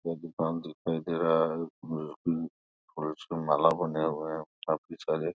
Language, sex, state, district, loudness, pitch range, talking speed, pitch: Hindi, male, Bihar, Darbhanga, -31 LUFS, 80-85 Hz, 155 wpm, 80 Hz